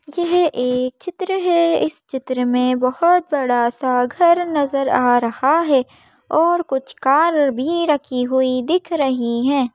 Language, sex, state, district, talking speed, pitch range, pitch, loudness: Hindi, female, Madhya Pradesh, Bhopal, 150 wpm, 255-335 Hz, 275 Hz, -18 LUFS